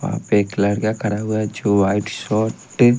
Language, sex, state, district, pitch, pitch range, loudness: Hindi, male, Haryana, Rohtak, 105 Hz, 100-110 Hz, -19 LUFS